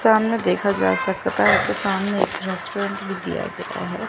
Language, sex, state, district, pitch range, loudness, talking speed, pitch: Hindi, female, Chandigarh, Chandigarh, 195-210 Hz, -21 LUFS, 190 wpm, 200 Hz